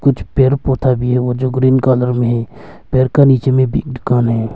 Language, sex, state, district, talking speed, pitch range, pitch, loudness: Hindi, male, Arunachal Pradesh, Longding, 225 wpm, 125-130 Hz, 130 Hz, -14 LUFS